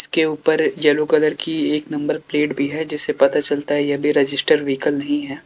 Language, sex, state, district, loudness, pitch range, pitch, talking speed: Hindi, male, Uttar Pradesh, Lalitpur, -18 LUFS, 145-155 Hz, 150 Hz, 220 wpm